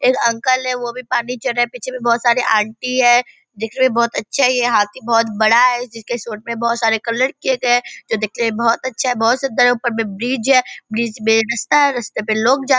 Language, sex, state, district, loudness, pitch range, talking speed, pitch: Hindi, female, Bihar, Purnia, -17 LUFS, 230-255 Hz, 260 wpm, 240 Hz